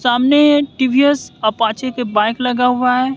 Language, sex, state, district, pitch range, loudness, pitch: Hindi, male, Bihar, West Champaran, 245-265 Hz, -15 LUFS, 250 Hz